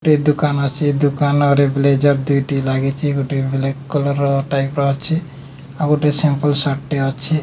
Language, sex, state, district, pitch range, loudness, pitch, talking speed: Odia, male, Odisha, Nuapada, 140-145 Hz, -17 LUFS, 140 Hz, 170 wpm